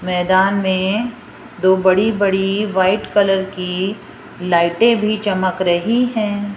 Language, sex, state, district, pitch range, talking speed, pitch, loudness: Hindi, female, Rajasthan, Jaipur, 185-210 Hz, 120 wpm, 195 Hz, -16 LUFS